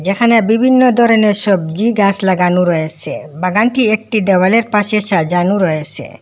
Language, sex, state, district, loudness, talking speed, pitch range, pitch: Bengali, female, Assam, Hailakandi, -12 LUFS, 125 wpm, 180-225 Hz, 200 Hz